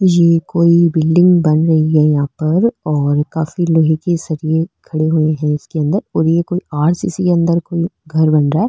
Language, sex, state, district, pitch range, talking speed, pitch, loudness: Marwari, female, Rajasthan, Nagaur, 155-170 Hz, 200 wpm, 160 Hz, -14 LUFS